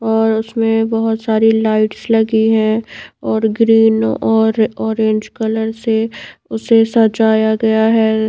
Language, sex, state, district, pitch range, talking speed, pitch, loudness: Hindi, female, Bihar, Patna, 220-225 Hz, 125 wpm, 220 Hz, -14 LUFS